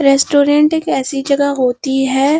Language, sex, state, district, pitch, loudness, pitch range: Hindi, female, Uttarakhand, Uttarkashi, 275 Hz, -14 LUFS, 270-285 Hz